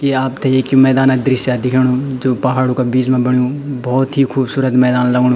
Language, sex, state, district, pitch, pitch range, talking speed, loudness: Garhwali, male, Uttarakhand, Tehri Garhwal, 130 Hz, 125-135 Hz, 200 wpm, -14 LUFS